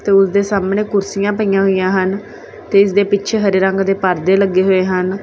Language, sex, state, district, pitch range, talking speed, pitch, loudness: Punjabi, female, Punjab, Kapurthala, 190-200 Hz, 205 wpm, 195 Hz, -15 LUFS